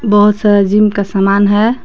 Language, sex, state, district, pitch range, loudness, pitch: Hindi, female, Jharkhand, Palamu, 200-210 Hz, -11 LUFS, 205 Hz